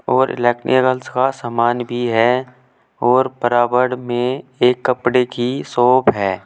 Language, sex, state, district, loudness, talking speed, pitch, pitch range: Hindi, male, Uttar Pradesh, Saharanpur, -17 LUFS, 130 wpm, 125 Hz, 120-130 Hz